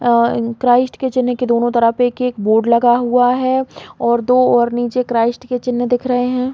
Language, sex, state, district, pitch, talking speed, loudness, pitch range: Hindi, female, Chhattisgarh, Raigarh, 245 Hz, 210 wpm, -15 LUFS, 235-250 Hz